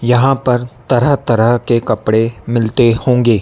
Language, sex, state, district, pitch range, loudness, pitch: Hindi, male, Madhya Pradesh, Dhar, 115-125 Hz, -13 LUFS, 120 Hz